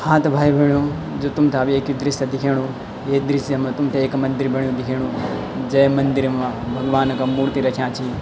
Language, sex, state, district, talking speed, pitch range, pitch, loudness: Garhwali, male, Uttarakhand, Tehri Garhwal, 190 wpm, 130-140 Hz, 135 Hz, -19 LUFS